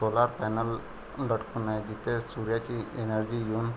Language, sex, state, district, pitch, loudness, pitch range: Marathi, male, Maharashtra, Pune, 115 Hz, -31 LUFS, 110-115 Hz